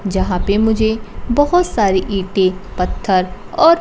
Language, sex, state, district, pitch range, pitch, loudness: Hindi, female, Bihar, Kaimur, 190-220 Hz, 200 Hz, -16 LUFS